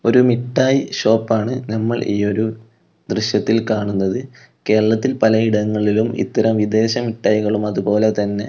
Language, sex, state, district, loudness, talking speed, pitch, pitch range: Malayalam, male, Kerala, Kozhikode, -18 LUFS, 105 wpm, 110 Hz, 105-115 Hz